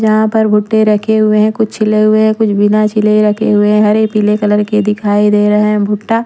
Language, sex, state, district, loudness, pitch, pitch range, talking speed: Hindi, female, Bihar, Patna, -11 LUFS, 215 Hz, 210-215 Hz, 240 wpm